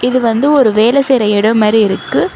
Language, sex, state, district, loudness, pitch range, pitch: Tamil, female, Tamil Nadu, Chennai, -11 LUFS, 215-255 Hz, 225 Hz